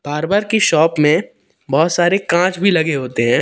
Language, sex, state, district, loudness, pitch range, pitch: Hindi, male, Madhya Pradesh, Katni, -15 LUFS, 150-185 Hz, 165 Hz